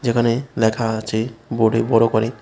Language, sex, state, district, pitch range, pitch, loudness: Bengali, male, Tripura, West Tripura, 110-115 Hz, 115 Hz, -19 LUFS